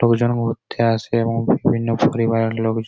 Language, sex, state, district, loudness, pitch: Bengali, male, West Bengal, Jhargram, -19 LUFS, 115 Hz